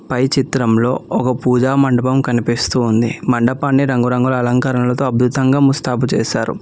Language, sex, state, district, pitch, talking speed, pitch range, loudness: Telugu, male, Telangana, Hyderabad, 125 Hz, 120 wpm, 125-135 Hz, -15 LUFS